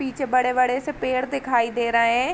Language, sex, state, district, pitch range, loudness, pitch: Hindi, female, Uttar Pradesh, Varanasi, 240-270 Hz, -22 LUFS, 255 Hz